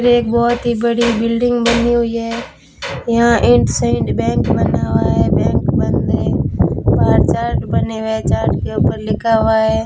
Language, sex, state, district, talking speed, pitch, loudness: Hindi, female, Rajasthan, Bikaner, 165 wpm, 230 Hz, -15 LUFS